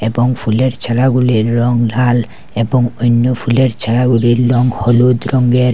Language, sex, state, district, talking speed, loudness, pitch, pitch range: Bengali, male, Assam, Hailakandi, 125 wpm, -13 LUFS, 120 Hz, 120-125 Hz